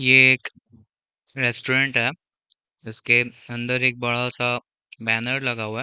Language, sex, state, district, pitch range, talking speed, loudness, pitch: Hindi, male, Chhattisgarh, Bilaspur, 115-130 Hz, 135 wpm, -21 LUFS, 120 Hz